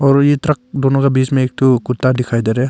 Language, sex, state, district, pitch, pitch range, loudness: Hindi, male, Arunachal Pradesh, Longding, 130 Hz, 125-140 Hz, -15 LUFS